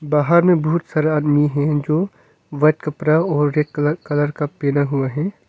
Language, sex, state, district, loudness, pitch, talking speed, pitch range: Hindi, male, Arunachal Pradesh, Longding, -18 LUFS, 150 Hz, 185 wpm, 145-160 Hz